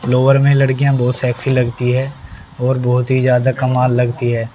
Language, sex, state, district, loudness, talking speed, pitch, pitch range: Hindi, male, Haryana, Rohtak, -15 LUFS, 185 wpm, 125 Hz, 125-130 Hz